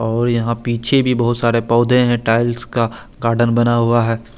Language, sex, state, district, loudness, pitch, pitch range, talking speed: Hindi, male, Chandigarh, Chandigarh, -16 LUFS, 120 Hz, 115-120 Hz, 190 wpm